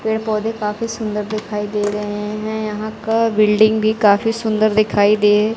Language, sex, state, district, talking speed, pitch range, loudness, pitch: Hindi, female, Chhattisgarh, Raipur, 170 wpm, 210-220 Hz, -17 LUFS, 215 Hz